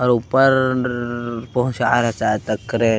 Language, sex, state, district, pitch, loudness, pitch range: Chhattisgarhi, male, Chhattisgarh, Kabirdham, 120 Hz, -19 LUFS, 120-125 Hz